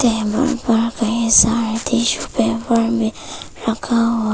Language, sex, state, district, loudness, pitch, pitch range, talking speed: Hindi, female, Arunachal Pradesh, Papum Pare, -17 LUFS, 230 Hz, 225-235 Hz, 140 wpm